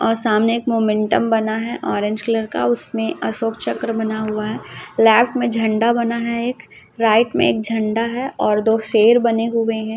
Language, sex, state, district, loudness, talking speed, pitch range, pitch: Hindi, female, Chhattisgarh, Raipur, -18 LUFS, 195 wpm, 220-230 Hz, 225 Hz